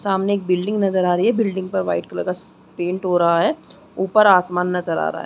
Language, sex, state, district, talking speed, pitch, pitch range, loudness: Hindi, female, Chhattisgarh, Balrampur, 250 wpm, 180 Hz, 175-195 Hz, -19 LUFS